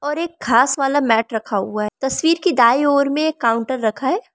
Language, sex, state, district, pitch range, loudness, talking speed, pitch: Hindi, female, Arunachal Pradesh, Lower Dibang Valley, 230-290 Hz, -18 LUFS, 220 wpm, 270 Hz